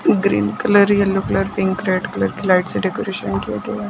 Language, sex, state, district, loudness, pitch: Hindi, female, Chhattisgarh, Bastar, -18 LUFS, 185 Hz